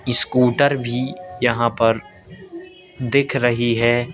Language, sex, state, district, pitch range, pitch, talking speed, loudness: Hindi, male, Madhya Pradesh, Katni, 120-140 Hz, 125 Hz, 100 wpm, -19 LUFS